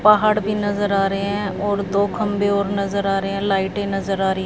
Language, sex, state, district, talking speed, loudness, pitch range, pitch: Hindi, female, Haryana, Jhajjar, 240 wpm, -20 LUFS, 195-205 Hz, 200 Hz